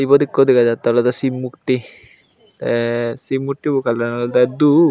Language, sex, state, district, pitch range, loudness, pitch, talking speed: Chakma, male, Tripura, Unakoti, 120-135 Hz, -17 LUFS, 125 Hz, 160 wpm